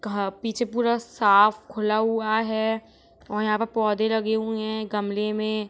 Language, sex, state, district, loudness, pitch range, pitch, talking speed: Hindi, female, Jharkhand, Sahebganj, -24 LUFS, 215-225 Hz, 215 Hz, 170 wpm